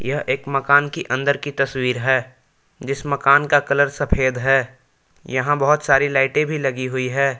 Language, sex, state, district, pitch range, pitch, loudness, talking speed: Hindi, male, Jharkhand, Palamu, 130-145 Hz, 140 Hz, -19 LUFS, 180 wpm